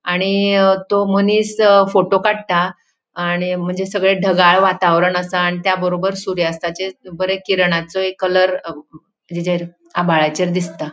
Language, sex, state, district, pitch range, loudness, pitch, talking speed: Konkani, female, Goa, North and South Goa, 175-190 Hz, -16 LUFS, 185 Hz, 125 wpm